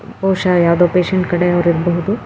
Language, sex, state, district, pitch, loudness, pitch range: Kannada, female, Karnataka, Shimoga, 180 Hz, -15 LUFS, 175-190 Hz